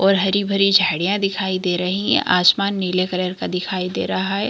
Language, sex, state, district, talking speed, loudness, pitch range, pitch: Hindi, female, Chhattisgarh, Bilaspur, 200 wpm, -19 LUFS, 185-195 Hz, 190 Hz